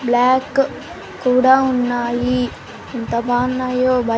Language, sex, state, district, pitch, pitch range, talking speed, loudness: Telugu, female, Andhra Pradesh, Sri Satya Sai, 250 Hz, 245-255 Hz, 85 wpm, -17 LUFS